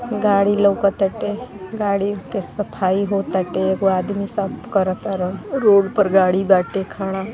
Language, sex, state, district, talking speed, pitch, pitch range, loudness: Bhojpuri, female, Uttar Pradesh, Ghazipur, 130 wpm, 195 Hz, 190-205 Hz, -19 LUFS